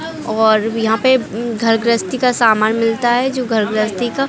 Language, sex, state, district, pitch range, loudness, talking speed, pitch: Hindi, female, Chhattisgarh, Bilaspur, 220-250 Hz, -15 LUFS, 180 wpm, 230 Hz